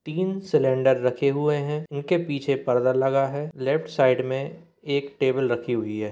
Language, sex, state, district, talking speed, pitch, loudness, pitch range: Hindi, male, Chhattisgarh, Bilaspur, 175 wpm, 140 Hz, -24 LUFS, 130-150 Hz